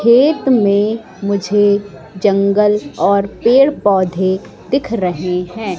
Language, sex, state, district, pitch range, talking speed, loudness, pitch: Hindi, female, Madhya Pradesh, Katni, 190-225 Hz, 105 wpm, -14 LUFS, 200 Hz